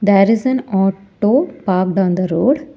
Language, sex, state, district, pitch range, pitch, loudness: English, female, Telangana, Hyderabad, 190-260 Hz, 200 Hz, -16 LUFS